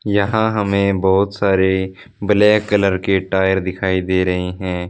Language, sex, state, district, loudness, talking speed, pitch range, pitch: Hindi, male, Punjab, Fazilka, -17 LUFS, 145 wpm, 95-100 Hz, 95 Hz